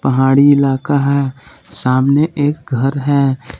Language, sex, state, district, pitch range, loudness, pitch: Hindi, male, Jharkhand, Palamu, 135-145 Hz, -14 LUFS, 140 Hz